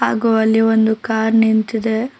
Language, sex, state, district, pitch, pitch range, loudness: Kannada, female, Karnataka, Bangalore, 220 Hz, 220-225 Hz, -16 LUFS